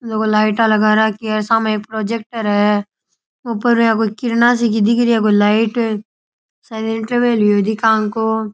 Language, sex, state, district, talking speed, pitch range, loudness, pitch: Rajasthani, male, Rajasthan, Churu, 155 wpm, 215-230 Hz, -15 LUFS, 220 Hz